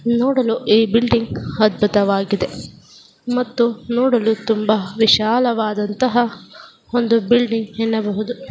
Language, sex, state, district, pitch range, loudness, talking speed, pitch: Kannada, female, Karnataka, Dakshina Kannada, 215-240 Hz, -18 LUFS, 85 wpm, 225 Hz